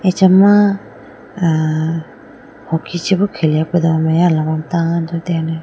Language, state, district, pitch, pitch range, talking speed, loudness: Idu Mishmi, Arunachal Pradesh, Lower Dibang Valley, 170 Hz, 160-190 Hz, 105 wpm, -15 LUFS